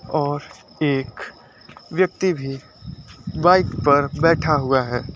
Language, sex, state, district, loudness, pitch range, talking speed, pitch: Hindi, male, Uttar Pradesh, Lucknow, -20 LUFS, 135-160 Hz, 105 wpm, 145 Hz